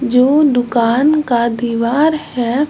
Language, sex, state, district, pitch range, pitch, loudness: Hindi, male, Bihar, West Champaran, 235-295 Hz, 250 Hz, -14 LUFS